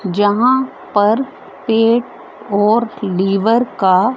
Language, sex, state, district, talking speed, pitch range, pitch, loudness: Hindi, female, Haryana, Rohtak, 85 wpm, 200-235 Hz, 215 Hz, -15 LUFS